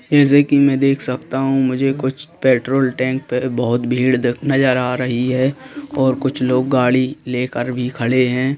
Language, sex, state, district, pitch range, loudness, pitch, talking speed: Hindi, male, Madhya Pradesh, Bhopal, 125-135 Hz, -17 LUFS, 130 Hz, 175 wpm